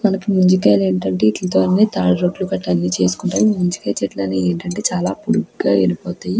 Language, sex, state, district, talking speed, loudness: Telugu, female, Andhra Pradesh, Krishna, 170 wpm, -17 LUFS